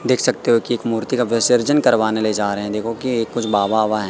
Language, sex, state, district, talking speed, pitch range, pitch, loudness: Hindi, male, Madhya Pradesh, Katni, 280 wpm, 110-120 Hz, 115 Hz, -18 LUFS